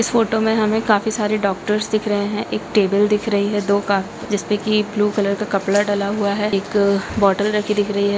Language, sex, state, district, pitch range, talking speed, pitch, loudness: Hindi, female, Bihar, Araria, 200-210 Hz, 240 wpm, 205 Hz, -19 LUFS